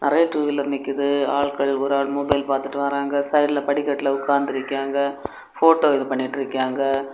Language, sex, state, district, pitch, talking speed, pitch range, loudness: Tamil, female, Tamil Nadu, Kanyakumari, 140 Hz, 145 wpm, 135-140 Hz, -21 LUFS